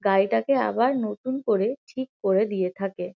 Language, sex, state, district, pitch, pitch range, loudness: Bengali, female, West Bengal, Kolkata, 210 Hz, 195-260 Hz, -25 LUFS